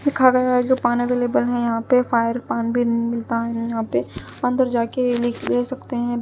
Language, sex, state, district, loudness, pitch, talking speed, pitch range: Hindi, female, Punjab, Pathankot, -20 LUFS, 240 Hz, 220 wpm, 230-250 Hz